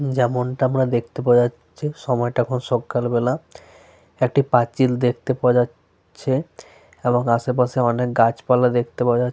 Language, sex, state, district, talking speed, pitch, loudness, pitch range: Bengali, male, Jharkhand, Sahebganj, 140 wpm, 125 Hz, -20 LUFS, 120-130 Hz